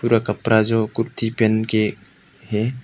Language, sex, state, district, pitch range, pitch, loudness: Hindi, male, Arunachal Pradesh, Papum Pare, 110-115 Hz, 110 Hz, -20 LUFS